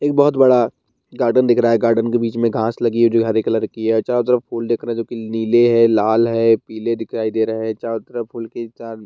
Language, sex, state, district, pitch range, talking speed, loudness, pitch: Hindi, male, Bihar, Bhagalpur, 115-120 Hz, 280 wpm, -17 LUFS, 115 Hz